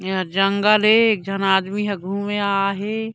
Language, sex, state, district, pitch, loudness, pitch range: Chhattisgarhi, female, Chhattisgarh, Korba, 200 Hz, -19 LUFS, 195-210 Hz